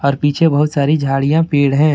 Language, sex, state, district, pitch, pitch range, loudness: Hindi, male, Jharkhand, Deoghar, 145 Hz, 140-155 Hz, -14 LUFS